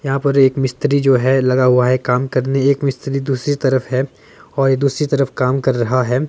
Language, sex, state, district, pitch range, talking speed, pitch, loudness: Hindi, male, Himachal Pradesh, Shimla, 130-140 Hz, 220 wpm, 135 Hz, -16 LUFS